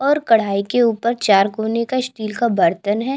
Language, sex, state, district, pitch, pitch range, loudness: Hindi, female, Chhattisgarh, Jashpur, 230 Hz, 205-245 Hz, -18 LUFS